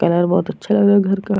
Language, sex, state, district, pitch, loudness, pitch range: Hindi, female, Uttar Pradesh, Jyotiba Phule Nagar, 195 Hz, -16 LUFS, 180-200 Hz